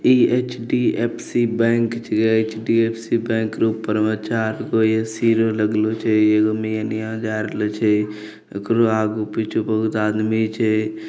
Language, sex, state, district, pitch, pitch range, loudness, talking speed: Angika, male, Bihar, Bhagalpur, 110 Hz, 110-115 Hz, -20 LUFS, 90 wpm